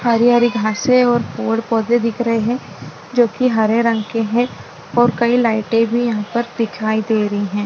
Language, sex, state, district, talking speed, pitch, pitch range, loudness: Hindi, female, Maharashtra, Aurangabad, 180 wpm, 230 Hz, 220-240 Hz, -17 LUFS